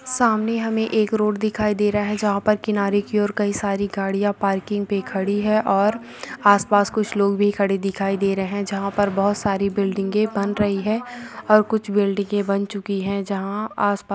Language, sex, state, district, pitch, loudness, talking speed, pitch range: Hindi, female, Bihar, Vaishali, 205 Hz, -21 LUFS, 205 wpm, 200-215 Hz